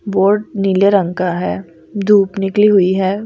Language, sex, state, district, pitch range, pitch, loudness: Hindi, female, Delhi, New Delhi, 185-200 Hz, 195 Hz, -14 LUFS